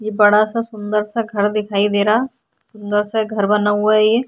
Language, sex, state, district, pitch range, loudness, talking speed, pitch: Hindi, female, Bihar, Vaishali, 205-220 Hz, -17 LUFS, 225 wpm, 210 Hz